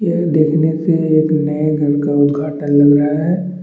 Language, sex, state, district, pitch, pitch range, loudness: Hindi, male, Chhattisgarh, Bastar, 155 Hz, 145-160 Hz, -14 LUFS